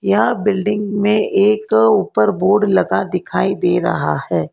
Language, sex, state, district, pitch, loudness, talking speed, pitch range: Hindi, female, Karnataka, Bangalore, 200 Hz, -16 LUFS, 145 wpm, 180-205 Hz